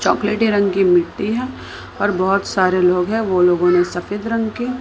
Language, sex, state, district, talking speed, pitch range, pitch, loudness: Hindi, female, Maharashtra, Mumbai Suburban, 200 wpm, 180-220 Hz, 195 Hz, -17 LUFS